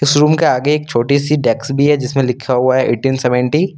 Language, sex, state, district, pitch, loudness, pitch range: Hindi, male, Jharkhand, Deoghar, 135 Hz, -14 LUFS, 125-150 Hz